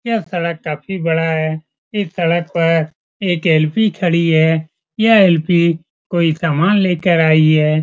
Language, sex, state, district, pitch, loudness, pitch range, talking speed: Hindi, male, Bihar, Supaul, 170 Hz, -15 LUFS, 160-180 Hz, 145 wpm